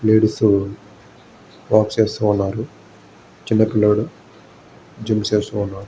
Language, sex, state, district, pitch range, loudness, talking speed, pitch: Telugu, male, Andhra Pradesh, Guntur, 105-110 Hz, -18 LUFS, 70 wpm, 105 Hz